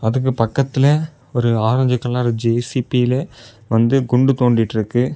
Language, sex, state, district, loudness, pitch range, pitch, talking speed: Tamil, male, Tamil Nadu, Kanyakumari, -17 LUFS, 115-130 Hz, 125 Hz, 115 wpm